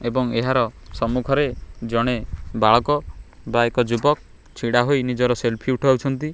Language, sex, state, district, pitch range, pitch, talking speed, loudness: Odia, male, Odisha, Khordha, 115-130 Hz, 125 Hz, 125 wpm, -21 LUFS